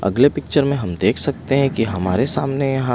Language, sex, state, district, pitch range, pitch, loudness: Hindi, male, Punjab, Pathankot, 100-140 Hz, 135 Hz, -18 LUFS